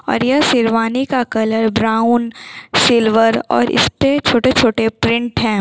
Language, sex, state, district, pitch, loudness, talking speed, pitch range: Hindi, female, Bihar, Jamui, 235 Hz, -14 LUFS, 130 wpm, 225-250 Hz